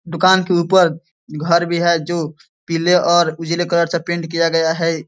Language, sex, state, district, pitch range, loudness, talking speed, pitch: Hindi, male, Bihar, East Champaran, 165-175 Hz, -16 LUFS, 190 wpm, 170 Hz